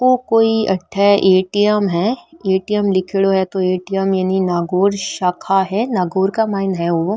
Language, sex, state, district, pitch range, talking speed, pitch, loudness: Marwari, female, Rajasthan, Nagaur, 185-210 Hz, 160 wpm, 195 Hz, -16 LUFS